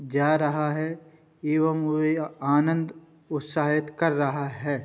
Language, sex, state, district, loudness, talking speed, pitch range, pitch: Hindi, male, Uttar Pradesh, Budaun, -26 LUFS, 125 wpm, 145-160 Hz, 155 Hz